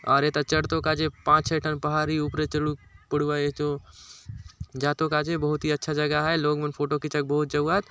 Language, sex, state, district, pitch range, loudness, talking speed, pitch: Halbi, male, Chhattisgarh, Bastar, 150-155 Hz, -25 LUFS, 195 wpm, 150 Hz